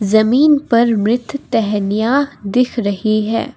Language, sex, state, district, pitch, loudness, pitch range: Hindi, female, Assam, Kamrup Metropolitan, 230 Hz, -15 LUFS, 215-250 Hz